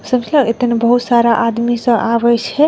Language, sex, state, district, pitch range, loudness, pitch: Maithili, female, Bihar, Madhepura, 235-245 Hz, -14 LUFS, 235 Hz